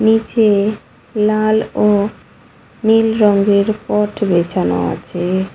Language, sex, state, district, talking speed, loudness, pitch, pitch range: Bengali, female, West Bengal, Cooch Behar, 85 wpm, -15 LUFS, 210 Hz, 190-215 Hz